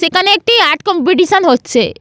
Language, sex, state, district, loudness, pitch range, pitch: Bengali, female, West Bengal, Paschim Medinipur, -10 LUFS, 315-390 Hz, 360 Hz